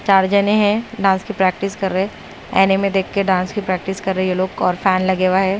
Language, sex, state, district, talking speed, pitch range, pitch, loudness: Hindi, female, Punjab, Kapurthala, 245 wpm, 185-200 Hz, 190 Hz, -17 LUFS